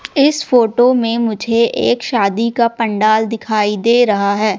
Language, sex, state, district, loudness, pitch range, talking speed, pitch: Hindi, female, Madhya Pradesh, Katni, -14 LUFS, 215-240 Hz, 155 wpm, 230 Hz